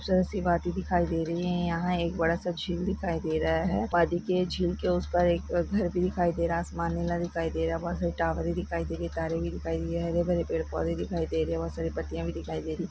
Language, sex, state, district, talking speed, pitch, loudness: Hindi, male, Jharkhand, Jamtara, 180 wpm, 170 Hz, -29 LUFS